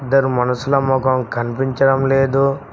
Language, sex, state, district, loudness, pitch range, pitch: Telugu, male, Telangana, Mahabubabad, -17 LUFS, 130-135 Hz, 135 Hz